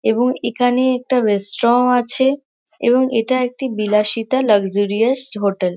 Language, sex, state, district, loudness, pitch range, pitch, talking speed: Bengali, female, West Bengal, Kolkata, -17 LUFS, 210-255 Hz, 240 Hz, 125 wpm